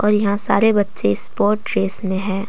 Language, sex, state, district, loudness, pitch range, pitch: Hindi, female, Jharkhand, Deoghar, -16 LUFS, 195-210 Hz, 200 Hz